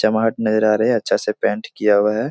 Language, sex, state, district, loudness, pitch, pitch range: Hindi, male, Bihar, Supaul, -18 LUFS, 110 Hz, 105-110 Hz